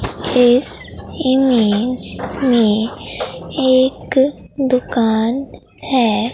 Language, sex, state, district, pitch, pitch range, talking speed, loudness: Hindi, female, Bihar, Katihar, 250 Hz, 230-265 Hz, 55 wpm, -16 LUFS